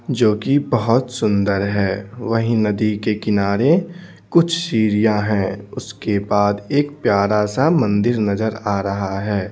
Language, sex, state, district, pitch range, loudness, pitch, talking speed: Hindi, male, Bihar, Patna, 100-125 Hz, -18 LUFS, 105 Hz, 140 wpm